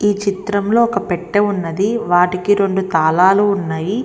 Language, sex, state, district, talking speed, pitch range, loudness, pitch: Telugu, female, Andhra Pradesh, Visakhapatnam, 120 wpm, 180-205 Hz, -16 LUFS, 200 Hz